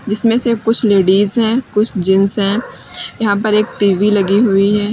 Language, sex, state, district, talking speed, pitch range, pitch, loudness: Hindi, female, Uttar Pradesh, Lalitpur, 185 wpm, 200-225 Hz, 210 Hz, -13 LUFS